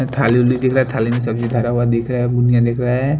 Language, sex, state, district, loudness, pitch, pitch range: Hindi, male, Haryana, Jhajjar, -16 LUFS, 120 Hz, 120-130 Hz